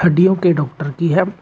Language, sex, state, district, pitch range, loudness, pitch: Hindi, male, Uttar Pradesh, Shamli, 155-185 Hz, -16 LUFS, 175 Hz